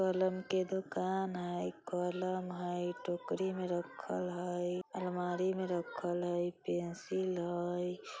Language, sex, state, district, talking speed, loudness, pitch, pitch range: Bajjika, female, Bihar, Vaishali, 115 wpm, -37 LUFS, 180 Hz, 175-185 Hz